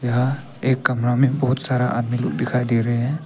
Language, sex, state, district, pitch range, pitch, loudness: Hindi, male, Arunachal Pradesh, Papum Pare, 120-130 Hz, 125 Hz, -21 LUFS